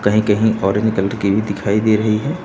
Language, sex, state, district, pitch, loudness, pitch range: Hindi, male, Uttar Pradesh, Lucknow, 105 Hz, -17 LUFS, 100-110 Hz